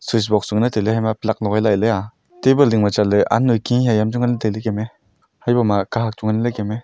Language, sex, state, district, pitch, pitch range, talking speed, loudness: Wancho, male, Arunachal Pradesh, Longding, 110 Hz, 105-120 Hz, 290 wpm, -18 LUFS